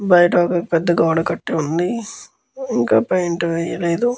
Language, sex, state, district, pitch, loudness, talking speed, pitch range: Telugu, male, Andhra Pradesh, Guntur, 175 Hz, -18 LUFS, 130 wpm, 165-185 Hz